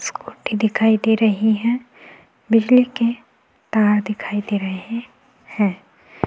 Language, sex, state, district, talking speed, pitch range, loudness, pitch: Hindi, female, Goa, North and South Goa, 135 wpm, 210-235 Hz, -19 LUFS, 220 Hz